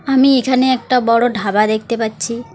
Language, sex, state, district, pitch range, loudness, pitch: Bengali, female, West Bengal, Alipurduar, 220-255 Hz, -15 LUFS, 235 Hz